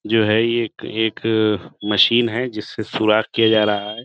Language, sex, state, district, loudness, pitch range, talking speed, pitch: Hindi, male, Uttar Pradesh, Budaun, -18 LUFS, 105-115 Hz, 190 wpm, 110 Hz